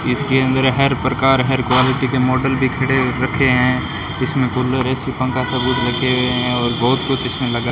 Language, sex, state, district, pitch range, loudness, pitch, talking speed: Hindi, male, Rajasthan, Bikaner, 125-130 Hz, -17 LUFS, 130 Hz, 210 wpm